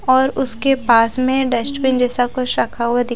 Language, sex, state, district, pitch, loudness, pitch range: Hindi, female, Odisha, Khordha, 255 Hz, -16 LUFS, 240-265 Hz